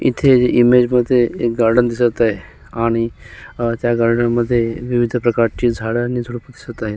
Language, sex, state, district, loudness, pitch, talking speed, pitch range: Marathi, male, Maharashtra, Solapur, -16 LUFS, 120 Hz, 145 wpm, 115-120 Hz